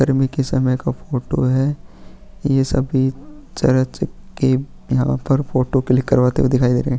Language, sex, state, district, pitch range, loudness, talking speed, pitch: Hindi, male, Chhattisgarh, Kabirdham, 125-135 Hz, -18 LUFS, 170 wpm, 130 Hz